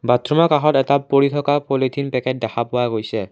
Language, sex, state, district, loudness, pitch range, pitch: Assamese, male, Assam, Kamrup Metropolitan, -18 LUFS, 120-140 Hz, 135 Hz